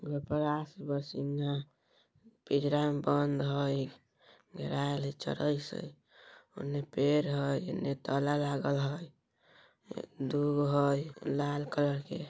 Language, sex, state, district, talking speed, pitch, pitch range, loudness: Bajjika, female, Bihar, Vaishali, 105 wpm, 145 Hz, 140-145 Hz, -33 LUFS